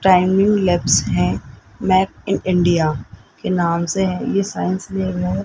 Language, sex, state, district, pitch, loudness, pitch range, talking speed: Hindi, male, Rajasthan, Jaipur, 180 Hz, -18 LUFS, 115-190 Hz, 145 wpm